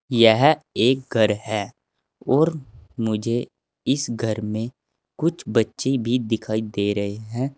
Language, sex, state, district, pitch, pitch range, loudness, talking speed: Hindi, male, Uttar Pradesh, Saharanpur, 115 Hz, 110-135 Hz, -22 LUFS, 125 wpm